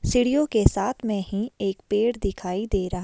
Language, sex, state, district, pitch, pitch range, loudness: Hindi, female, Himachal Pradesh, Shimla, 205 Hz, 195-230 Hz, -24 LUFS